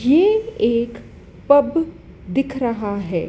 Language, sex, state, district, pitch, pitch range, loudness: Hindi, female, Madhya Pradesh, Dhar, 270 Hz, 230-325 Hz, -19 LUFS